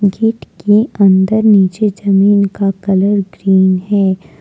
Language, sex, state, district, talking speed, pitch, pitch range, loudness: Hindi, female, Jharkhand, Deoghar, 125 wpm, 200 Hz, 190-205 Hz, -12 LUFS